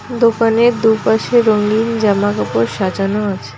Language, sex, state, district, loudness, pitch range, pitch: Bengali, female, West Bengal, Alipurduar, -14 LUFS, 205-230 Hz, 220 Hz